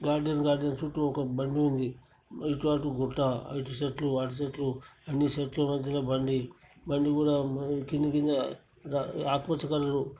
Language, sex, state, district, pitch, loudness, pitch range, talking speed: Telugu, male, Telangana, Karimnagar, 140 Hz, -30 LUFS, 135-150 Hz, 140 wpm